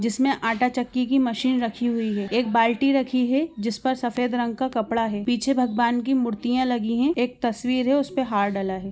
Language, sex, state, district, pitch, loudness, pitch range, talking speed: Hindi, female, Bihar, Muzaffarpur, 245 Hz, -23 LUFS, 230-255 Hz, 220 wpm